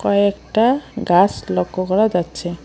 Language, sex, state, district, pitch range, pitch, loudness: Bengali, female, West Bengal, Alipurduar, 175-215 Hz, 190 Hz, -18 LUFS